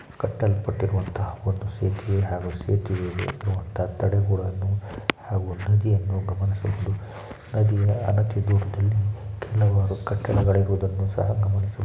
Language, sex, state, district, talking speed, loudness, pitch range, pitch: Kannada, male, Karnataka, Shimoga, 80 wpm, -25 LUFS, 95-105 Hz, 100 Hz